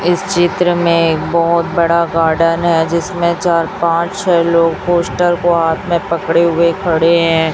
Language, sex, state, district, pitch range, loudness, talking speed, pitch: Hindi, female, Chhattisgarh, Raipur, 165-175 Hz, -13 LUFS, 150 wpm, 170 Hz